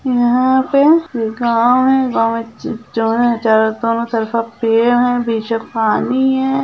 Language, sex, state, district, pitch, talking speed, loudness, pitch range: Hindi, female, Chhattisgarh, Bilaspur, 235 Hz, 145 wpm, -15 LUFS, 225-255 Hz